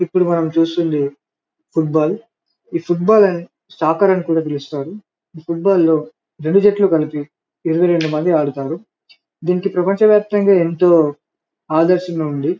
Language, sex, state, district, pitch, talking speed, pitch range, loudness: Telugu, male, Telangana, Karimnagar, 170 Hz, 125 wpm, 155-195 Hz, -16 LUFS